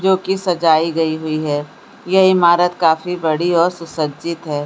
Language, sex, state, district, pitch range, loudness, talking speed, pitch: Hindi, female, Bihar, Supaul, 155-180 Hz, -16 LUFS, 180 wpm, 165 Hz